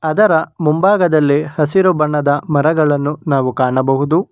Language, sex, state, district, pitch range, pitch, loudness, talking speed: Kannada, male, Karnataka, Bangalore, 145-165 Hz, 150 Hz, -14 LUFS, 95 wpm